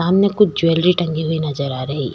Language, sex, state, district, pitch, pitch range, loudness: Hindi, female, Uttar Pradesh, Etah, 165 Hz, 145-180 Hz, -17 LUFS